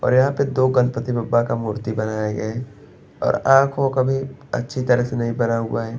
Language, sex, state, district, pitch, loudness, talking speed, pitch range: Hindi, male, Chhattisgarh, Bastar, 120 Hz, -20 LUFS, 220 wpm, 115-130 Hz